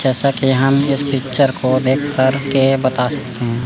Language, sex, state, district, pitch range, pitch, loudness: Hindi, male, Chandigarh, Chandigarh, 130-140 Hz, 135 Hz, -16 LUFS